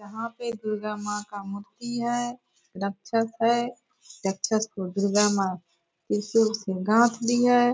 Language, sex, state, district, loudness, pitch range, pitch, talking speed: Hindi, female, Bihar, Purnia, -26 LUFS, 200-235 Hz, 215 Hz, 140 wpm